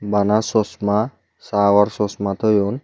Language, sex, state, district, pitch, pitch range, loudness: Chakma, male, Tripura, Unakoti, 105 Hz, 100-110 Hz, -19 LUFS